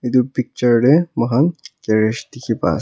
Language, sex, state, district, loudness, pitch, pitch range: Nagamese, male, Nagaland, Kohima, -17 LUFS, 125 Hz, 120-140 Hz